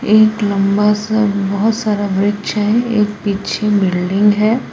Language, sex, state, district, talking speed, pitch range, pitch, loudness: Hindi, female, Jharkhand, Palamu, 140 wpm, 200-215 Hz, 210 Hz, -15 LUFS